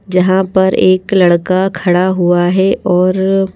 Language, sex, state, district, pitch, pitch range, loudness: Hindi, female, Madhya Pradesh, Bhopal, 185 Hz, 180-190 Hz, -12 LUFS